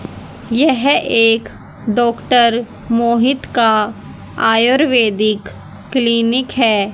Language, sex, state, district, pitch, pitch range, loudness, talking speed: Hindi, female, Haryana, Rohtak, 235 Hz, 215-245 Hz, -14 LUFS, 70 wpm